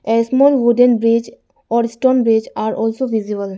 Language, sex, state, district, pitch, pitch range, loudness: English, female, Arunachal Pradesh, Lower Dibang Valley, 230 Hz, 225-245 Hz, -15 LUFS